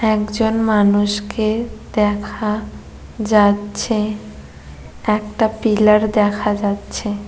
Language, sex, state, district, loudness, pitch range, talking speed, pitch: Bengali, female, West Bengal, Cooch Behar, -18 LUFS, 205-215 Hz, 65 wpm, 210 Hz